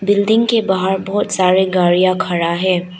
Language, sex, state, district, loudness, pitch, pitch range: Hindi, female, Arunachal Pradesh, Lower Dibang Valley, -15 LUFS, 185 Hz, 180-200 Hz